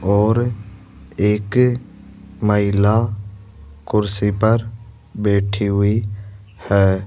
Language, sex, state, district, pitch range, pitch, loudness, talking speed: Hindi, male, Rajasthan, Jaipur, 100-105 Hz, 100 Hz, -18 LUFS, 70 wpm